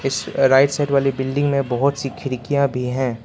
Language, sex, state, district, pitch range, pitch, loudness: Hindi, male, Arunachal Pradesh, Lower Dibang Valley, 130-140 Hz, 135 Hz, -19 LUFS